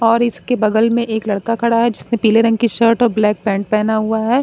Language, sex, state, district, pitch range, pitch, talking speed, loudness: Hindi, female, Bihar, Katihar, 215-235 Hz, 225 Hz, 255 wpm, -15 LUFS